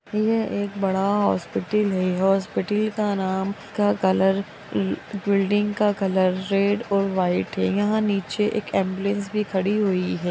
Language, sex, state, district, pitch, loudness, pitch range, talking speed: Magahi, female, Bihar, Gaya, 200 Hz, -23 LUFS, 190-205 Hz, 145 wpm